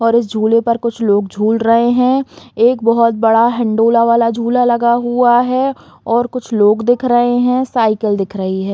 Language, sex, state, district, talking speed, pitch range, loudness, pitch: Hindi, female, Bihar, East Champaran, 190 wpm, 225-245 Hz, -13 LUFS, 235 Hz